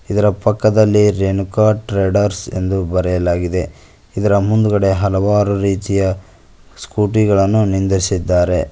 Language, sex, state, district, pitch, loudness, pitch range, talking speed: Kannada, male, Karnataka, Koppal, 95 Hz, -15 LUFS, 95-105 Hz, 90 wpm